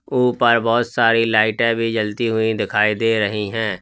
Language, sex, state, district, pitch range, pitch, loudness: Hindi, male, Uttar Pradesh, Lalitpur, 110-115 Hz, 115 Hz, -18 LUFS